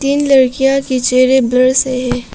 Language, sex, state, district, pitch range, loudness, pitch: Hindi, female, Arunachal Pradesh, Papum Pare, 250-270 Hz, -12 LUFS, 260 Hz